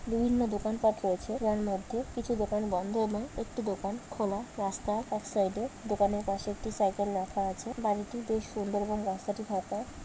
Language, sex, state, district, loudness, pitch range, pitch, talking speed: Bengali, female, West Bengal, Malda, -32 LUFS, 200-225 Hz, 210 Hz, 165 wpm